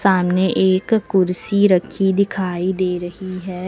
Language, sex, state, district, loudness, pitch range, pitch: Hindi, female, Uttar Pradesh, Lucknow, -18 LUFS, 180-195 Hz, 185 Hz